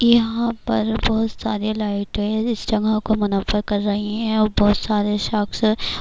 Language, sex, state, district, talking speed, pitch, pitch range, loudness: Urdu, female, Bihar, Kishanganj, 160 wpm, 215 Hz, 210-220 Hz, -20 LUFS